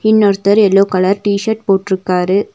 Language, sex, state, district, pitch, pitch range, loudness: Tamil, female, Tamil Nadu, Nilgiris, 200 Hz, 190-210 Hz, -13 LUFS